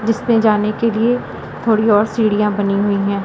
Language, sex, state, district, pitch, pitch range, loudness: Hindi, female, Madhya Pradesh, Katni, 215 Hz, 205-225 Hz, -16 LUFS